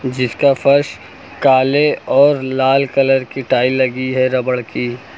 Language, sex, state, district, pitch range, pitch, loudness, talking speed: Hindi, male, Uttar Pradesh, Lucknow, 130-140 Hz, 130 Hz, -15 LUFS, 140 wpm